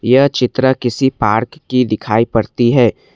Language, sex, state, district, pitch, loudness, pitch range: Hindi, male, Assam, Kamrup Metropolitan, 125 Hz, -14 LUFS, 115-130 Hz